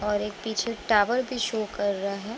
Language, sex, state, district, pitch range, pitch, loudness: Hindi, female, Uttar Pradesh, Budaun, 205-230 Hz, 215 Hz, -26 LUFS